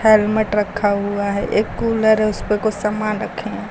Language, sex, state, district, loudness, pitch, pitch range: Hindi, female, Uttar Pradesh, Lucknow, -19 LUFS, 210 Hz, 210-220 Hz